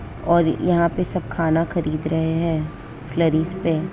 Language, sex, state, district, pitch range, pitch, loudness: Hindi, female, West Bengal, Kolkata, 155-170 Hz, 165 Hz, -21 LUFS